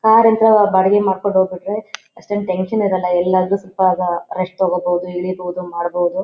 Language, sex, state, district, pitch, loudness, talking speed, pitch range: Kannada, female, Karnataka, Shimoga, 185 Hz, -17 LUFS, 125 wpm, 180-205 Hz